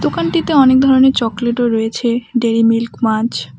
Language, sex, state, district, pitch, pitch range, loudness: Bengali, female, West Bengal, Alipurduar, 235 Hz, 230-260 Hz, -14 LUFS